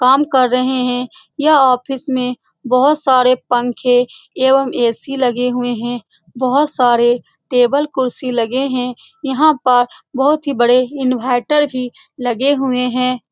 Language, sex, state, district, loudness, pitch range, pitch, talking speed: Hindi, female, Bihar, Saran, -15 LUFS, 245-270 Hz, 255 Hz, 150 wpm